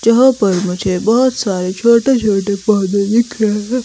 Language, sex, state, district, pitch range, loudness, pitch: Hindi, female, Himachal Pradesh, Shimla, 195-240 Hz, -14 LUFS, 215 Hz